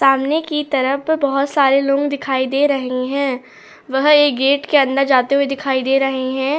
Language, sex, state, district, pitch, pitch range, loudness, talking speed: Hindi, female, Goa, North and South Goa, 275 Hz, 265-285 Hz, -16 LUFS, 190 wpm